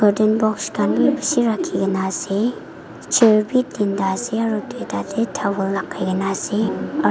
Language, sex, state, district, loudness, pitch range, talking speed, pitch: Nagamese, female, Nagaland, Dimapur, -20 LUFS, 195-230 Hz, 170 wpm, 215 Hz